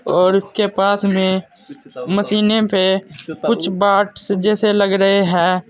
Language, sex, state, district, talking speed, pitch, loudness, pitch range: Hindi, male, Uttar Pradesh, Saharanpur, 125 wpm, 195 Hz, -16 LUFS, 185-205 Hz